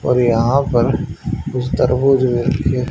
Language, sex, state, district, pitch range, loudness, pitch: Hindi, male, Haryana, Charkhi Dadri, 120-135 Hz, -16 LUFS, 125 Hz